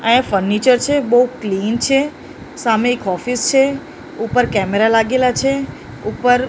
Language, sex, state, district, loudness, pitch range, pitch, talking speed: Gujarati, female, Maharashtra, Mumbai Suburban, -16 LUFS, 225-270 Hz, 245 Hz, 155 wpm